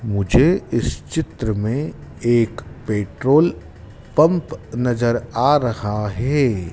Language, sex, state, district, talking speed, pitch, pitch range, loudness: Hindi, male, Madhya Pradesh, Dhar, 100 wpm, 120 Hz, 105-140 Hz, -19 LUFS